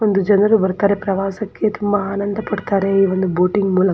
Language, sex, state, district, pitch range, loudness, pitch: Kannada, female, Karnataka, Belgaum, 190-205 Hz, -17 LUFS, 200 Hz